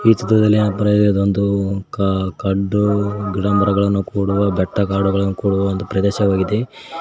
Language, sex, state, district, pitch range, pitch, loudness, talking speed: Kannada, male, Karnataka, Koppal, 95-105 Hz, 100 Hz, -17 LUFS, 130 wpm